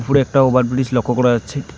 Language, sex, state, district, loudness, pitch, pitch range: Bengali, male, West Bengal, Alipurduar, -16 LUFS, 130 Hz, 120-135 Hz